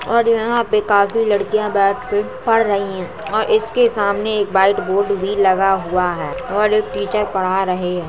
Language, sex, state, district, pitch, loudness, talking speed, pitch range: Hindi, male, Uttar Pradesh, Jalaun, 200 Hz, -17 LUFS, 195 wpm, 190-215 Hz